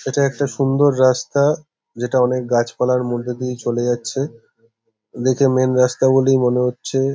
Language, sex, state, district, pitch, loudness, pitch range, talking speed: Bengali, male, West Bengal, Paschim Medinipur, 125 Hz, -18 LUFS, 120-135 Hz, 140 wpm